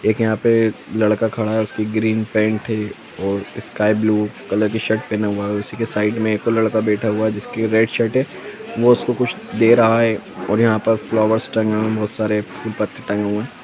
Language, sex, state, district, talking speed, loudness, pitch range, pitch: Hindi, male, Jharkhand, Jamtara, 230 wpm, -19 LUFS, 105-110 Hz, 110 Hz